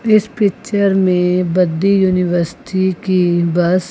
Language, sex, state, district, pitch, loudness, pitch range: Hindi, female, Chandigarh, Chandigarh, 185 Hz, -15 LUFS, 180-200 Hz